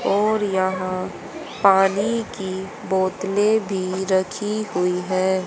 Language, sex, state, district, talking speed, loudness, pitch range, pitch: Hindi, female, Haryana, Jhajjar, 100 wpm, -21 LUFS, 185-205 Hz, 190 Hz